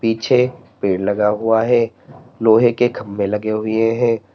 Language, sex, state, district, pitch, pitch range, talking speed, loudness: Hindi, male, Uttar Pradesh, Lalitpur, 115 Hz, 105-120 Hz, 150 wpm, -17 LUFS